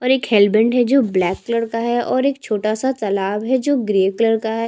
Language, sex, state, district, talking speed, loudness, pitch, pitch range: Hindi, female, Chhattisgarh, Jashpur, 255 wpm, -17 LUFS, 230 Hz, 210-250 Hz